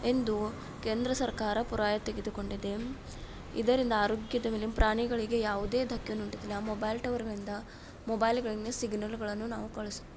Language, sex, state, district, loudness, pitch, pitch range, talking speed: Kannada, female, Karnataka, Belgaum, -33 LUFS, 220 Hz, 210-235 Hz, 130 wpm